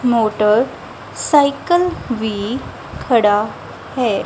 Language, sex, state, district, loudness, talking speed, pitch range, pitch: Punjabi, female, Punjab, Kapurthala, -17 LUFS, 70 wpm, 215-275 Hz, 235 Hz